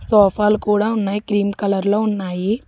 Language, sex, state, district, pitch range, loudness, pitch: Telugu, female, Telangana, Hyderabad, 200-215 Hz, -18 LUFS, 205 Hz